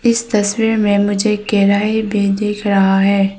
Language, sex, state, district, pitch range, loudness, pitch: Hindi, female, Arunachal Pradesh, Papum Pare, 200-215 Hz, -15 LUFS, 205 Hz